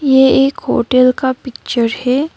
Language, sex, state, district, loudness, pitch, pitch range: Hindi, female, West Bengal, Darjeeling, -13 LUFS, 260 Hz, 255-270 Hz